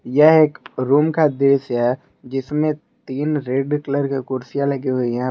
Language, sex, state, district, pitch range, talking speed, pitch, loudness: Hindi, male, Jharkhand, Garhwa, 130-150 Hz, 170 wpm, 140 Hz, -19 LUFS